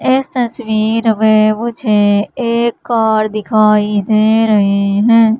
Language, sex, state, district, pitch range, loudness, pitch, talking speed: Hindi, female, Madhya Pradesh, Katni, 215-230 Hz, -13 LUFS, 220 Hz, 110 wpm